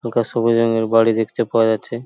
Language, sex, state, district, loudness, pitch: Bengali, male, West Bengal, Paschim Medinipur, -17 LUFS, 115 Hz